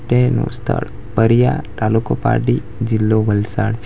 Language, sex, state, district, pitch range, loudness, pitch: Gujarati, male, Gujarat, Valsad, 110-115 Hz, -17 LUFS, 110 Hz